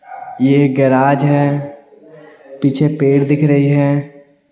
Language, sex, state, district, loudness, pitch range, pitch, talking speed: Hindi, male, Bihar, Patna, -14 LUFS, 140-145 Hz, 145 Hz, 105 wpm